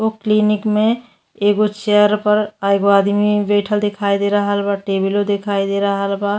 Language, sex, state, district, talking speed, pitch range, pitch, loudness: Bhojpuri, female, Uttar Pradesh, Deoria, 170 wpm, 200-210 Hz, 205 Hz, -16 LUFS